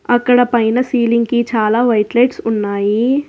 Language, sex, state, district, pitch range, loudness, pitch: Telugu, female, Telangana, Hyderabad, 220-245 Hz, -14 LUFS, 235 Hz